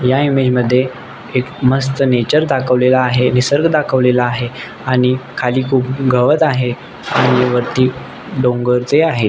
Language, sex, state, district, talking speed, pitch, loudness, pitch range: Marathi, male, Maharashtra, Nagpur, 140 wpm, 130 Hz, -14 LUFS, 125-135 Hz